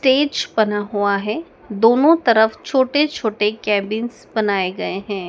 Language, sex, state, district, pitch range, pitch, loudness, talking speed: Hindi, female, Madhya Pradesh, Dhar, 205-260 Hz, 220 Hz, -18 LUFS, 135 wpm